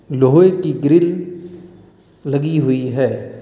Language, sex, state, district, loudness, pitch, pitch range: Hindi, male, Uttar Pradesh, Lalitpur, -15 LUFS, 155 Hz, 130-175 Hz